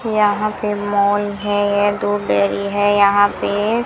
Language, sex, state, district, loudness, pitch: Hindi, female, Rajasthan, Bikaner, -17 LUFS, 205 Hz